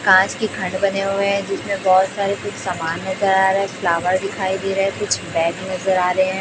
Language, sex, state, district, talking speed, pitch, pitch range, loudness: Hindi, male, Chhattisgarh, Raipur, 250 wpm, 190 Hz, 185-195 Hz, -19 LUFS